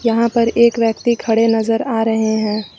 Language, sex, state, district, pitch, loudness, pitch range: Hindi, female, Uttar Pradesh, Lucknow, 225 Hz, -15 LUFS, 225-235 Hz